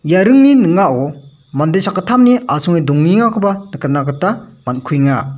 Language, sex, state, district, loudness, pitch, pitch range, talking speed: Garo, male, Meghalaya, West Garo Hills, -13 LUFS, 165 Hz, 140-200 Hz, 110 wpm